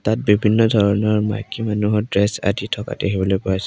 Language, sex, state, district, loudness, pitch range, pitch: Assamese, male, Assam, Kamrup Metropolitan, -19 LUFS, 100-105 Hz, 105 Hz